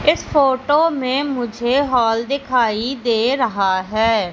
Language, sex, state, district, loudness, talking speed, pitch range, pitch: Hindi, female, Madhya Pradesh, Katni, -18 LUFS, 125 wpm, 225-275 Hz, 250 Hz